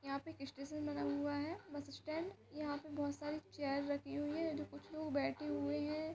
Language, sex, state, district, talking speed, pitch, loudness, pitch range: Hindi, female, Uttar Pradesh, Budaun, 245 wpm, 295 Hz, -43 LUFS, 285-305 Hz